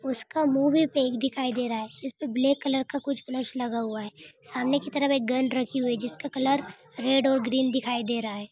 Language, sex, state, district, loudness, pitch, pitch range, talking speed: Hindi, female, Rajasthan, Churu, -27 LUFS, 260 Hz, 245-275 Hz, 240 wpm